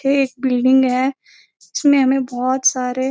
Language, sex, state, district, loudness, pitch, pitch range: Hindi, female, Uttarakhand, Uttarkashi, -17 LUFS, 260 Hz, 255-270 Hz